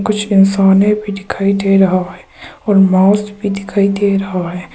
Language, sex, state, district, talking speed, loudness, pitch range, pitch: Hindi, female, Arunachal Pradesh, Papum Pare, 175 wpm, -13 LUFS, 190-205 Hz, 195 Hz